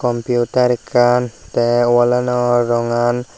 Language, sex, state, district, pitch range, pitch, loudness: Chakma, male, Tripura, Dhalai, 120-125 Hz, 120 Hz, -16 LUFS